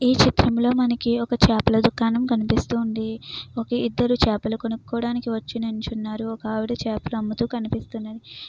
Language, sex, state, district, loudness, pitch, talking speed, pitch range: Telugu, female, Andhra Pradesh, Chittoor, -23 LUFS, 230 Hz, 125 wpm, 220-240 Hz